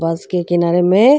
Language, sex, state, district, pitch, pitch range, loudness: Bhojpuri, female, Uttar Pradesh, Gorakhpur, 175 Hz, 170-190 Hz, -15 LUFS